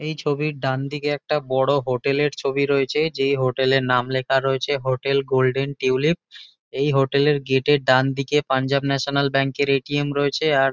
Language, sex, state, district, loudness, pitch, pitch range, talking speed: Bengali, male, West Bengal, Jalpaiguri, -21 LUFS, 140 Hz, 135-145 Hz, 175 wpm